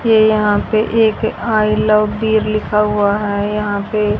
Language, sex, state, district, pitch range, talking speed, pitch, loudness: Hindi, female, Haryana, Rohtak, 210-220 Hz, 170 wpm, 215 Hz, -15 LUFS